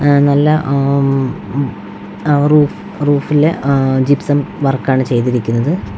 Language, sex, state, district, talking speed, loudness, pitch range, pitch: Malayalam, female, Kerala, Wayanad, 100 wpm, -14 LUFS, 130-145 Hz, 140 Hz